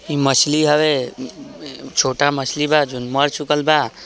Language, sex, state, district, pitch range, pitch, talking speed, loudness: Hindi, male, Bihar, East Champaran, 135-150 Hz, 145 Hz, 145 wpm, -17 LUFS